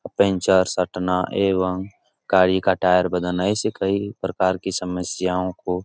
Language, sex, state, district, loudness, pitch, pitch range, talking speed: Hindi, male, Bihar, Supaul, -21 LUFS, 95 Hz, 90-95 Hz, 145 wpm